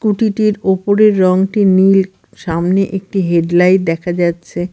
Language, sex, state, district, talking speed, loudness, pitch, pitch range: Bengali, female, Bihar, Katihar, 125 wpm, -13 LUFS, 190 Hz, 175-200 Hz